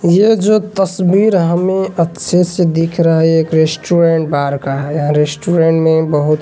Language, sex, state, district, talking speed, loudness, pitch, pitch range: Hindi, male, Bihar, Supaul, 170 wpm, -13 LUFS, 165 Hz, 155-185 Hz